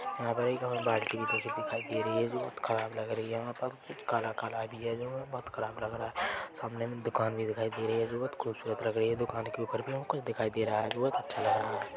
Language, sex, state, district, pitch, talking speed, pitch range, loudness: Hindi, male, Chhattisgarh, Bilaspur, 115 Hz, 280 wpm, 110-120 Hz, -34 LUFS